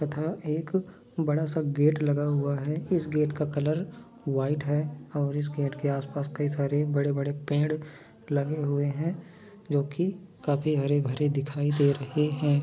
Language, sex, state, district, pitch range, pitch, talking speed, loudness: Hindi, male, Goa, North and South Goa, 145-155 Hz, 145 Hz, 160 wpm, -28 LUFS